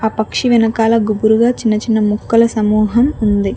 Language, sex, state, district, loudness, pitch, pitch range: Telugu, female, Telangana, Mahabubabad, -14 LUFS, 220 Hz, 215-230 Hz